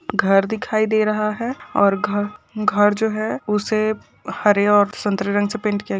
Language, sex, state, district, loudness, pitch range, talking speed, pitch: Hindi, female, Rajasthan, Churu, -19 LUFS, 205-215 Hz, 180 wpm, 210 Hz